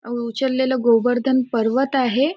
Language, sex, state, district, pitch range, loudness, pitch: Marathi, female, Maharashtra, Nagpur, 240-265 Hz, -19 LUFS, 255 Hz